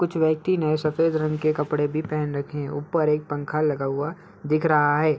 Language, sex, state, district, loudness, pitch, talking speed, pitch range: Hindi, male, Uttar Pradesh, Ghazipur, -24 LUFS, 155 Hz, 220 wpm, 145-155 Hz